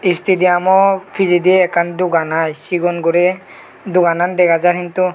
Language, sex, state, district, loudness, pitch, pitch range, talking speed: Chakma, male, Tripura, West Tripura, -14 LUFS, 180 Hz, 175-185 Hz, 130 wpm